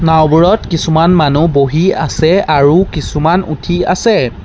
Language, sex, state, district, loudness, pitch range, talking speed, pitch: Assamese, male, Assam, Sonitpur, -11 LUFS, 155-175 Hz, 120 wpm, 160 Hz